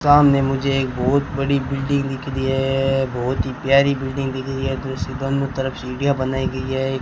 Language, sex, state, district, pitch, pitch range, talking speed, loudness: Hindi, male, Rajasthan, Bikaner, 135 Hz, 130-135 Hz, 205 wpm, -20 LUFS